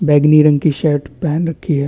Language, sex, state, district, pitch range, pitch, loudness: Hindi, male, Chhattisgarh, Bastar, 145-155 Hz, 150 Hz, -14 LUFS